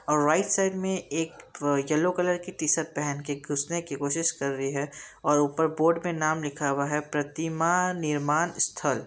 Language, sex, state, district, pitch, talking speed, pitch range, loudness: Hindi, female, Bihar, Sitamarhi, 155 Hz, 170 wpm, 145-170 Hz, -27 LUFS